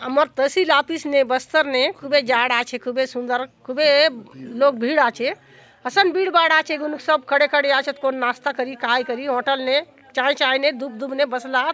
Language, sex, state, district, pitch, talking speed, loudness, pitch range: Halbi, female, Chhattisgarh, Bastar, 275 Hz, 185 wpm, -19 LUFS, 255-295 Hz